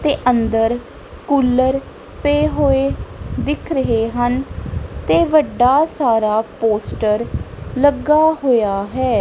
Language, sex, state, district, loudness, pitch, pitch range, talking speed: Punjabi, female, Punjab, Kapurthala, -17 LUFS, 255 Hz, 225-290 Hz, 100 wpm